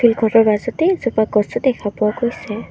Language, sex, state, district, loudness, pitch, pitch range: Assamese, female, Assam, Kamrup Metropolitan, -17 LUFS, 225 Hz, 210-240 Hz